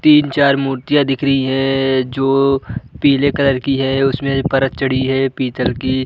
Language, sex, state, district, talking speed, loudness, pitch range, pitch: Hindi, male, Uttar Pradesh, Budaun, 160 wpm, -15 LUFS, 130-140 Hz, 135 Hz